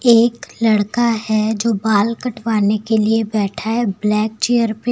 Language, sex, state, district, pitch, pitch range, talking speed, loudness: Hindi, female, Uttar Pradesh, Lucknow, 220 Hz, 215-230 Hz, 160 wpm, -17 LUFS